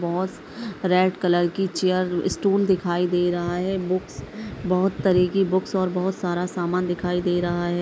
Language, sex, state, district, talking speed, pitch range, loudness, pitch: Hindi, female, Uttar Pradesh, Hamirpur, 175 wpm, 175-190 Hz, -23 LUFS, 180 Hz